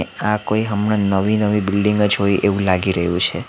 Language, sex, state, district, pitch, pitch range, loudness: Gujarati, male, Gujarat, Valsad, 100 Hz, 95-105 Hz, -17 LUFS